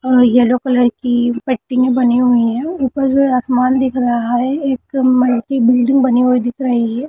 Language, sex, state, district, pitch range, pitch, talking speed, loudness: Hindi, female, Bihar, Darbhanga, 245-260 Hz, 250 Hz, 185 wpm, -14 LUFS